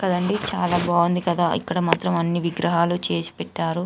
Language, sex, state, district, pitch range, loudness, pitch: Telugu, female, Andhra Pradesh, Anantapur, 170-180 Hz, -22 LUFS, 175 Hz